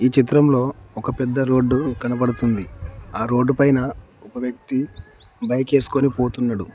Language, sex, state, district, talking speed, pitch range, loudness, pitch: Telugu, male, Telangana, Mahabubabad, 105 wpm, 115-135 Hz, -19 LUFS, 125 Hz